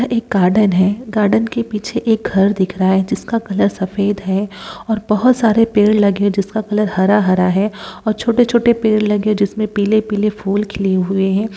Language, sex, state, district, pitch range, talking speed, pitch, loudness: Hindi, female, Bihar, Saran, 195-220 Hz, 185 wpm, 210 Hz, -15 LUFS